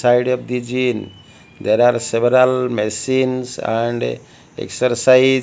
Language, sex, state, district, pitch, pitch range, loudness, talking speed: English, male, Odisha, Malkangiri, 125 Hz, 115-125 Hz, -17 LUFS, 110 wpm